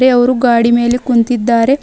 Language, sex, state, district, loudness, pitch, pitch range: Kannada, female, Karnataka, Bidar, -12 LUFS, 245 Hz, 235-255 Hz